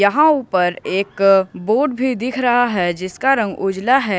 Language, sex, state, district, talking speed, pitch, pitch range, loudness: Hindi, male, Jharkhand, Ranchi, 185 wpm, 200 Hz, 190-255 Hz, -17 LUFS